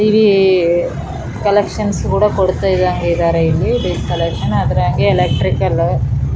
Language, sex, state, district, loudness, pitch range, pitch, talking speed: Kannada, female, Karnataka, Raichur, -15 LUFS, 170-205 Hz, 190 Hz, 105 wpm